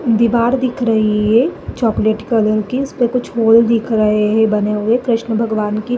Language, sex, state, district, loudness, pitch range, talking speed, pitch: Hindi, female, Uttar Pradesh, Jalaun, -15 LUFS, 215-240 Hz, 190 wpm, 225 Hz